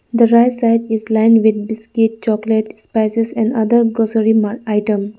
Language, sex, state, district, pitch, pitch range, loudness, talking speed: English, female, Arunachal Pradesh, Lower Dibang Valley, 220 Hz, 220-230 Hz, -15 LUFS, 160 wpm